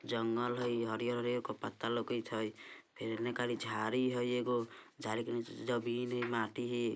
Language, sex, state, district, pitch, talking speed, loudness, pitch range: Bajjika, male, Bihar, Vaishali, 120 Hz, 180 wpm, -37 LUFS, 115-120 Hz